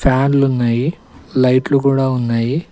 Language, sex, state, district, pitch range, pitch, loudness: Telugu, male, Telangana, Mahabubabad, 125-140 Hz, 130 Hz, -16 LUFS